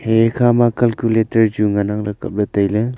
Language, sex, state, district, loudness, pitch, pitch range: Wancho, male, Arunachal Pradesh, Longding, -16 LUFS, 110 Hz, 105-120 Hz